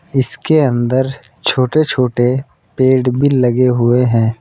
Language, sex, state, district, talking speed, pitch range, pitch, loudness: Hindi, male, Uttar Pradesh, Saharanpur, 120 wpm, 120-135 Hz, 130 Hz, -14 LUFS